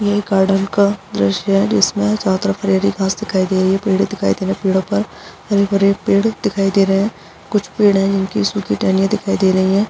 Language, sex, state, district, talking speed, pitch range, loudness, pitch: Hindi, female, Bihar, Araria, 225 wpm, 190-205 Hz, -16 LUFS, 195 Hz